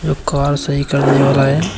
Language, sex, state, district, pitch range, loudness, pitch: Hindi, male, Uttar Pradesh, Shamli, 140-145 Hz, -14 LUFS, 140 Hz